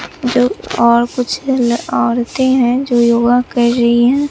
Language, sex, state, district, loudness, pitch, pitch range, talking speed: Hindi, female, Bihar, Katihar, -13 LUFS, 245 Hz, 235-260 Hz, 155 wpm